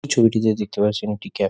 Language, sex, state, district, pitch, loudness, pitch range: Bengali, male, West Bengal, Kolkata, 105 Hz, -21 LUFS, 105-115 Hz